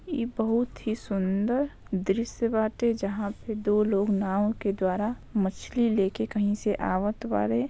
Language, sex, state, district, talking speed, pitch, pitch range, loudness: Bhojpuri, female, Bihar, Saran, 150 wpm, 210 Hz, 195-230 Hz, -28 LUFS